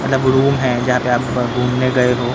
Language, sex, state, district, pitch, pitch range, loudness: Hindi, male, Maharashtra, Mumbai Suburban, 125 Hz, 125-130 Hz, -16 LUFS